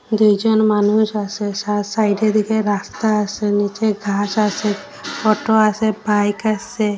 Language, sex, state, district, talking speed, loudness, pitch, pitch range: Bengali, female, Assam, Hailakandi, 130 wpm, -18 LUFS, 210 Hz, 205-215 Hz